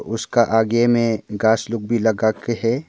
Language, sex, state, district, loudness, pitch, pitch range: Hindi, male, Arunachal Pradesh, Papum Pare, -19 LUFS, 115 Hz, 110-120 Hz